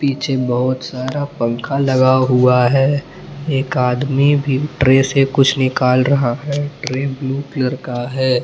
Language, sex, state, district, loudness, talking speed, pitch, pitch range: Hindi, male, Jharkhand, Palamu, -16 LUFS, 150 wpm, 135 Hz, 125-140 Hz